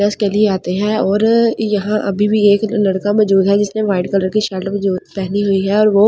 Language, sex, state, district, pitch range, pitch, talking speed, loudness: Hindi, female, Delhi, New Delhi, 195-215 Hz, 205 Hz, 285 wpm, -15 LUFS